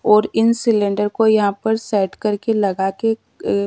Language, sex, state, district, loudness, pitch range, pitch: Hindi, female, Madhya Pradesh, Dhar, -18 LUFS, 200-225 Hz, 210 Hz